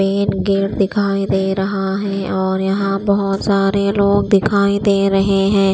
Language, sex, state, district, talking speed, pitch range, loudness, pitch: Hindi, female, Bihar, Kaimur, 155 wpm, 195-200 Hz, -16 LUFS, 195 Hz